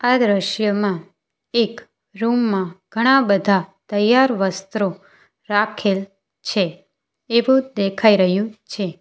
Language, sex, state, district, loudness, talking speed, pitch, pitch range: Gujarati, female, Gujarat, Valsad, -19 LUFS, 100 wpm, 205 Hz, 195-230 Hz